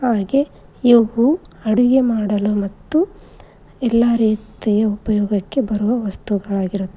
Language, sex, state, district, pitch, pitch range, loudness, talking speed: Kannada, female, Karnataka, Koppal, 220 Hz, 205-245 Hz, -18 LUFS, 85 wpm